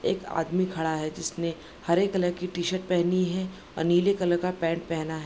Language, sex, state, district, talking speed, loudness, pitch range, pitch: Hindi, female, Bihar, Darbhanga, 205 wpm, -27 LUFS, 165-185 Hz, 175 Hz